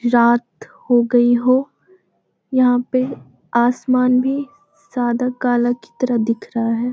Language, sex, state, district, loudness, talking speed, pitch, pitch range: Hindi, female, Bihar, Jamui, -18 LUFS, 130 wpm, 250 Hz, 240-255 Hz